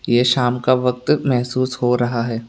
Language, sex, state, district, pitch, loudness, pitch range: Hindi, male, Tripura, West Tripura, 125 Hz, -18 LUFS, 120-130 Hz